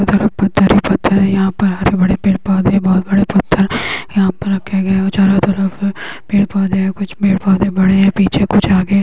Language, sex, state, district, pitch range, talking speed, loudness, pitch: Magahi, female, Bihar, Gaya, 190-200 Hz, 220 wpm, -14 LUFS, 195 Hz